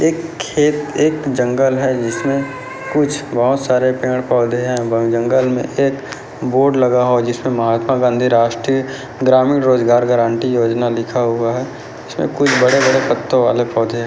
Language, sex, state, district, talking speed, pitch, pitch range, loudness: Hindi, male, Bihar, Jahanabad, 150 wpm, 125 Hz, 120-135 Hz, -15 LUFS